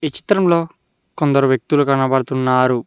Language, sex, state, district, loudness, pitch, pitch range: Telugu, male, Telangana, Mahabubabad, -16 LUFS, 135 Hz, 130-155 Hz